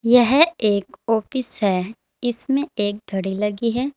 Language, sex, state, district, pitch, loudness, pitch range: Hindi, female, Uttar Pradesh, Saharanpur, 230 Hz, -20 LUFS, 205-260 Hz